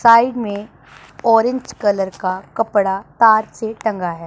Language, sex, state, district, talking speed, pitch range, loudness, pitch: Hindi, female, Punjab, Pathankot, 140 wpm, 195-225 Hz, -17 LUFS, 220 Hz